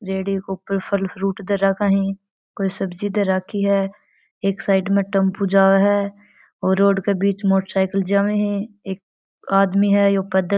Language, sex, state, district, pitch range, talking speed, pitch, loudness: Marwari, female, Rajasthan, Churu, 195-200 Hz, 180 wpm, 195 Hz, -20 LUFS